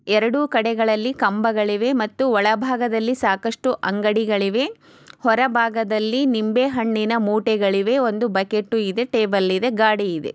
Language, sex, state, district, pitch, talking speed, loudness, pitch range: Kannada, female, Karnataka, Chamarajanagar, 225 Hz, 105 wpm, -20 LUFS, 210-245 Hz